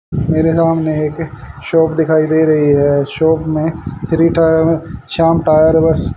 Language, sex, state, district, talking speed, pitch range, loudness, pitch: Hindi, male, Haryana, Charkhi Dadri, 145 wpm, 155-165 Hz, -13 LUFS, 160 Hz